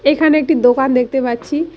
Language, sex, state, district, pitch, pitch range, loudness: Bengali, female, West Bengal, Cooch Behar, 285 Hz, 250-310 Hz, -14 LUFS